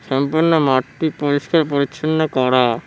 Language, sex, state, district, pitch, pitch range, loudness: Bengali, male, West Bengal, Cooch Behar, 145 Hz, 130-155 Hz, -17 LUFS